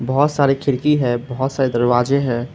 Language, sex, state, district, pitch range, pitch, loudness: Hindi, male, Arunachal Pradesh, Lower Dibang Valley, 120-140 Hz, 130 Hz, -18 LUFS